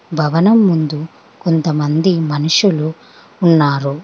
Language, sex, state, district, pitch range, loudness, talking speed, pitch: Telugu, female, Telangana, Hyderabad, 150-170 Hz, -14 LUFS, 75 wpm, 160 Hz